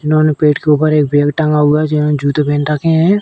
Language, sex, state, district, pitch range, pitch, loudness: Hindi, female, Uttar Pradesh, Etah, 150-155 Hz, 150 Hz, -13 LUFS